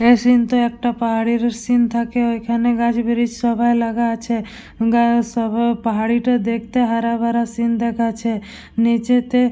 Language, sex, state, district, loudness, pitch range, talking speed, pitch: Bengali, female, West Bengal, Purulia, -18 LUFS, 230-240 Hz, 140 wpm, 235 Hz